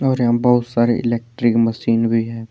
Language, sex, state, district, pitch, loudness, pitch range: Hindi, male, Jharkhand, Deoghar, 115 Hz, -17 LUFS, 115-120 Hz